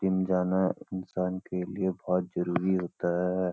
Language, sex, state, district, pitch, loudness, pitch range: Hindi, male, Uttarakhand, Uttarkashi, 90 Hz, -30 LUFS, 90-95 Hz